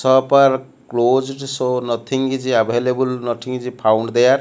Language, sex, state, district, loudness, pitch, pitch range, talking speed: English, male, Odisha, Malkangiri, -18 LUFS, 125 Hz, 120-130 Hz, 150 wpm